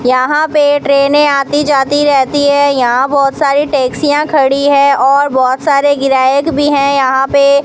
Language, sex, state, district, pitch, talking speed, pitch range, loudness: Hindi, female, Rajasthan, Bikaner, 280 Hz, 165 wpm, 270-290 Hz, -10 LUFS